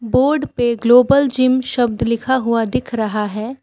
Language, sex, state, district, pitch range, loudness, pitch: Hindi, female, Assam, Kamrup Metropolitan, 230-260 Hz, -16 LUFS, 245 Hz